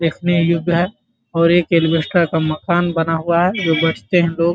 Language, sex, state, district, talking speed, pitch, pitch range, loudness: Maithili, male, Bihar, Muzaffarpur, 200 wpm, 170 Hz, 165-175 Hz, -16 LUFS